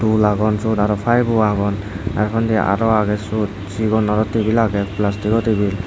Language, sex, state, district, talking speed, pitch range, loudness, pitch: Chakma, male, Tripura, Dhalai, 185 wpm, 100-110 Hz, -18 LUFS, 105 Hz